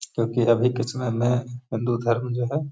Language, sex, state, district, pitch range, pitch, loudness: Hindi, male, Bihar, Gaya, 120-125 Hz, 120 Hz, -24 LUFS